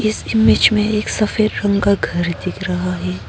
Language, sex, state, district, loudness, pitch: Hindi, female, Arunachal Pradesh, Papum Pare, -17 LUFS, 200 Hz